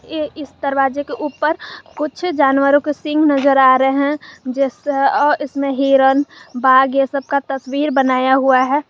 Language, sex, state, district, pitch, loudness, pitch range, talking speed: Hindi, male, Jharkhand, Garhwa, 275 Hz, -16 LUFS, 270-295 Hz, 170 wpm